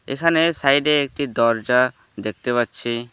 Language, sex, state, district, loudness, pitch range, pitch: Bengali, male, West Bengal, Alipurduar, -20 LUFS, 120-145 Hz, 125 Hz